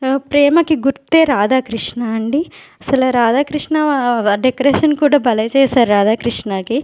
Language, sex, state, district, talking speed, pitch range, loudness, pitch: Telugu, female, Andhra Pradesh, Sri Satya Sai, 105 wpm, 230-285 Hz, -14 LUFS, 260 Hz